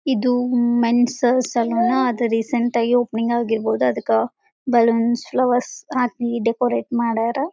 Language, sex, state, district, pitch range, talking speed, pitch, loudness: Kannada, female, Karnataka, Belgaum, 235-250 Hz, 110 wpm, 240 Hz, -19 LUFS